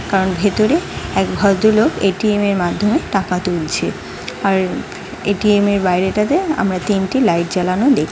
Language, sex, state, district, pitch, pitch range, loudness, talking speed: Bengali, female, West Bengal, Jhargram, 200 Hz, 185-210 Hz, -16 LUFS, 165 wpm